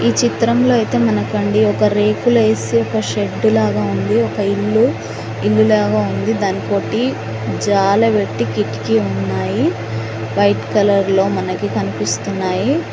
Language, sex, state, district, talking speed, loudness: Telugu, female, Telangana, Mahabubabad, 120 wpm, -16 LUFS